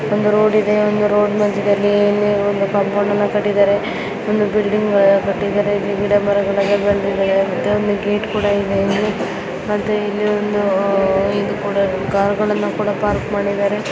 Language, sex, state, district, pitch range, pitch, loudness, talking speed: Kannada, female, Karnataka, Shimoga, 200-210 Hz, 205 Hz, -17 LUFS, 155 wpm